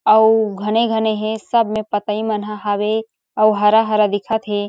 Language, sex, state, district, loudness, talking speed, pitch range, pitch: Chhattisgarhi, female, Chhattisgarh, Sarguja, -17 LUFS, 165 wpm, 210-220 Hz, 215 Hz